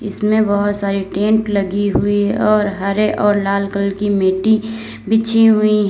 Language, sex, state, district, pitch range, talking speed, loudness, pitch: Hindi, female, Uttar Pradesh, Lalitpur, 200-215 Hz, 175 wpm, -16 LUFS, 205 Hz